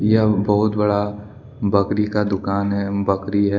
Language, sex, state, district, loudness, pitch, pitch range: Hindi, male, Jharkhand, Deoghar, -20 LUFS, 105 Hz, 100-105 Hz